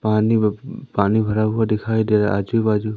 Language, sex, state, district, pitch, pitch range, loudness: Hindi, male, Madhya Pradesh, Umaria, 110 Hz, 105-110 Hz, -19 LUFS